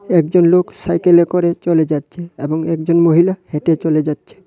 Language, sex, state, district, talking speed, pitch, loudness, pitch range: Bengali, male, Tripura, West Tripura, 160 wpm, 170 Hz, -15 LUFS, 160-175 Hz